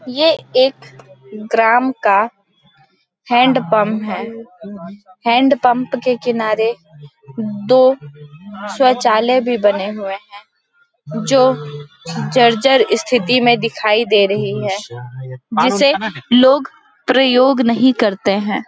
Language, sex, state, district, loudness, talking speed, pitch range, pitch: Hindi, female, Chhattisgarh, Balrampur, -14 LUFS, 95 wpm, 195-255 Hz, 220 Hz